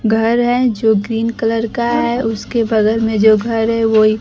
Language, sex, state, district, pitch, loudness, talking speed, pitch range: Hindi, female, Bihar, Kaimur, 225 Hz, -15 LUFS, 215 wpm, 220-235 Hz